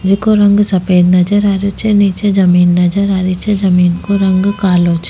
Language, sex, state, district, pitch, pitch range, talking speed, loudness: Rajasthani, female, Rajasthan, Nagaur, 195 Hz, 180-200 Hz, 210 wpm, -11 LUFS